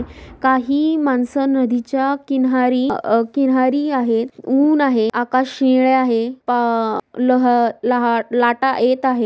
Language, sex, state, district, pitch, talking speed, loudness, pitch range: Marathi, female, Maharashtra, Sindhudurg, 255 Hz, 115 wpm, -17 LUFS, 240-265 Hz